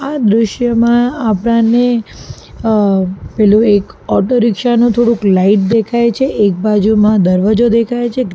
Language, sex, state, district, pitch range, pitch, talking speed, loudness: Gujarati, female, Gujarat, Valsad, 210-240 Hz, 225 Hz, 130 wpm, -12 LUFS